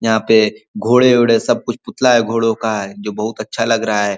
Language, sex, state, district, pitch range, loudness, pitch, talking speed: Hindi, male, Uttar Pradesh, Ghazipur, 105-115 Hz, -15 LUFS, 110 Hz, 230 wpm